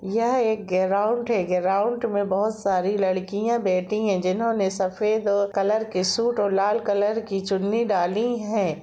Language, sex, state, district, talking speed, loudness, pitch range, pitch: Hindi, female, Jharkhand, Jamtara, 150 wpm, -23 LUFS, 190-220 Hz, 205 Hz